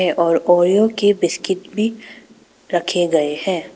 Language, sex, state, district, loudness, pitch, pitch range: Hindi, female, Arunachal Pradesh, Papum Pare, -17 LUFS, 180 Hz, 175-205 Hz